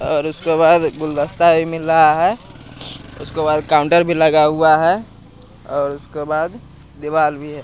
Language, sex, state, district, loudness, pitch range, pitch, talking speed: Hindi, male, Bihar, West Champaran, -16 LUFS, 145-160 Hz, 150 Hz, 165 wpm